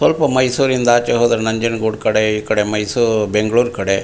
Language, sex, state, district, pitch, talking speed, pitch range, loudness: Kannada, male, Karnataka, Mysore, 115 Hz, 180 wpm, 105-120 Hz, -16 LUFS